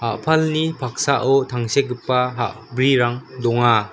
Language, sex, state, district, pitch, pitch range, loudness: Garo, female, Meghalaya, West Garo Hills, 125 Hz, 120-135 Hz, -19 LUFS